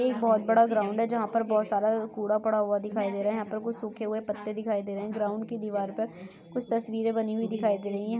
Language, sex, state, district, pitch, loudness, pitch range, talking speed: Hindi, female, Jharkhand, Sahebganj, 215 Hz, -29 LUFS, 210-225 Hz, 280 wpm